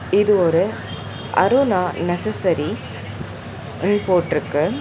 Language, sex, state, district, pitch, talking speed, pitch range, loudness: Tamil, female, Tamil Nadu, Chennai, 175 Hz, 75 wpm, 120-200 Hz, -19 LUFS